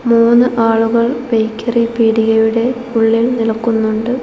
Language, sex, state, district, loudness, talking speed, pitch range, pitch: Malayalam, female, Kerala, Kozhikode, -13 LUFS, 85 wpm, 225-235 Hz, 230 Hz